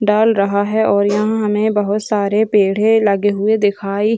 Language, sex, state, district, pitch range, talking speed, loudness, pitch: Hindi, female, Bihar, Gaya, 200-215 Hz, 185 wpm, -15 LUFS, 210 Hz